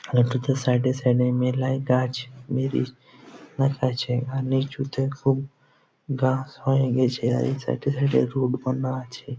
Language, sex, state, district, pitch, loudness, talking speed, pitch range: Bengali, male, West Bengal, Jhargram, 130 Hz, -24 LUFS, 160 wpm, 125-135 Hz